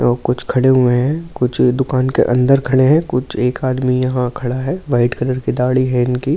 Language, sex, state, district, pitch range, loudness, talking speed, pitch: Hindi, male, Delhi, New Delhi, 125-130 Hz, -16 LUFS, 225 wpm, 130 Hz